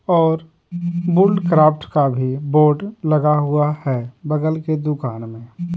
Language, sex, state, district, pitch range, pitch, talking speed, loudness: Hindi, male, Bihar, Patna, 145-170 Hz, 155 Hz, 135 wpm, -18 LUFS